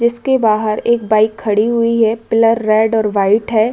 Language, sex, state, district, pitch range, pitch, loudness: Hindi, female, Uttar Pradesh, Budaun, 215-230 Hz, 225 Hz, -14 LUFS